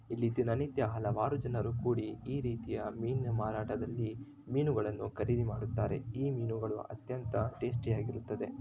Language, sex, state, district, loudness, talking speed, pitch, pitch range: Kannada, male, Karnataka, Shimoga, -36 LUFS, 120 wpm, 115 Hz, 110-125 Hz